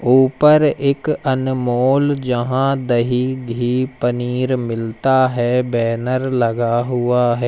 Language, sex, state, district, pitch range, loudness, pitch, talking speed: Hindi, male, Madhya Pradesh, Umaria, 120-130 Hz, -17 LUFS, 125 Hz, 105 wpm